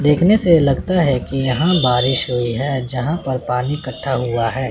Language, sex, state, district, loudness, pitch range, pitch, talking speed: Hindi, male, Chandigarh, Chandigarh, -17 LUFS, 125-150 Hz, 130 Hz, 190 wpm